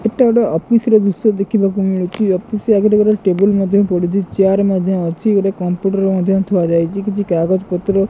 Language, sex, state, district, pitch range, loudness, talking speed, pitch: Odia, male, Odisha, Khordha, 185-210 Hz, -15 LUFS, 165 wpm, 195 Hz